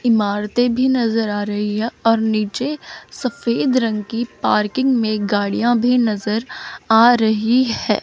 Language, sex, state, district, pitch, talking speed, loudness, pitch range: Hindi, female, Chandigarh, Chandigarh, 225 Hz, 140 wpm, -18 LUFS, 210-245 Hz